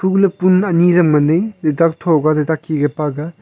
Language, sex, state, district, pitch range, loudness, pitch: Wancho, male, Arunachal Pradesh, Longding, 155-180 Hz, -15 LUFS, 165 Hz